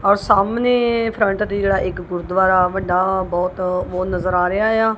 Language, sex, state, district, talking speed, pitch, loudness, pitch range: Punjabi, female, Punjab, Kapurthala, 170 wpm, 190 Hz, -18 LUFS, 180-210 Hz